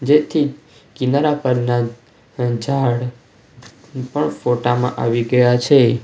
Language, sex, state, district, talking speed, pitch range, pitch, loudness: Gujarati, male, Gujarat, Valsad, 100 wpm, 120-140 Hz, 125 Hz, -18 LUFS